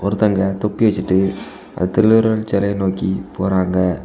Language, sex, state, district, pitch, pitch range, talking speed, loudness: Tamil, male, Tamil Nadu, Kanyakumari, 95 Hz, 95-105 Hz, 105 wpm, -17 LUFS